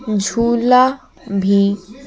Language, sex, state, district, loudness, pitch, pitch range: Hindi, female, Bihar, Patna, -15 LUFS, 230 Hz, 200-250 Hz